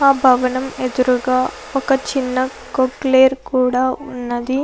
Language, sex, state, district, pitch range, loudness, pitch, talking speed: Telugu, female, Andhra Pradesh, Anantapur, 255-270 Hz, -17 LUFS, 260 Hz, 105 wpm